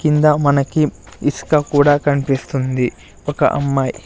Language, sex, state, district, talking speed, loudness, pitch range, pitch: Telugu, male, Andhra Pradesh, Sri Satya Sai, 105 wpm, -17 LUFS, 135-150 Hz, 145 Hz